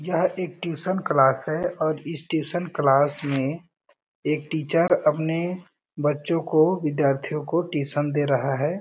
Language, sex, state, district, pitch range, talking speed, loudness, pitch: Hindi, male, Chhattisgarh, Balrampur, 145-170 Hz, 145 wpm, -24 LUFS, 155 Hz